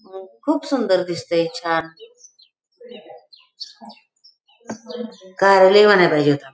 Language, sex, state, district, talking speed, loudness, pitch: Marathi, female, Maharashtra, Pune, 75 wpm, -16 LUFS, 195 Hz